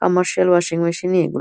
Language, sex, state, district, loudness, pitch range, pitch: Bengali, female, West Bengal, Kolkata, -18 LUFS, 170-180 Hz, 175 Hz